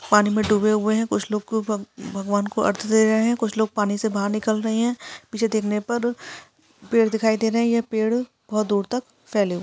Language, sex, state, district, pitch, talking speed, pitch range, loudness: Hindi, female, Karnataka, Raichur, 220 Hz, 225 wpm, 210-230 Hz, -22 LUFS